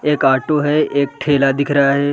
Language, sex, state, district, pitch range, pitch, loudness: Hindi, male, Bihar, Gaya, 140-150 Hz, 140 Hz, -15 LUFS